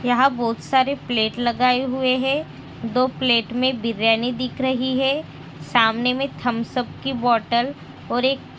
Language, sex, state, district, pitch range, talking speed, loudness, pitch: Hindi, female, Bihar, Araria, 235-260 Hz, 155 wpm, -21 LUFS, 250 Hz